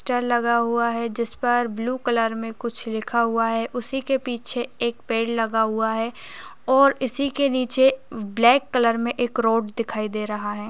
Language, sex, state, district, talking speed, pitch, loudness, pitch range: Hindi, female, Bihar, Bhagalpur, 180 wpm, 235 Hz, -22 LUFS, 225-250 Hz